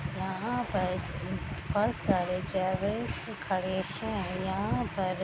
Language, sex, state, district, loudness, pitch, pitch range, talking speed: Hindi, female, Bihar, East Champaran, -32 LUFS, 190 Hz, 185-200 Hz, 125 wpm